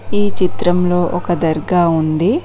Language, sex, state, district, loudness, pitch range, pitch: Telugu, female, Telangana, Mahabubabad, -16 LUFS, 170-185 Hz, 175 Hz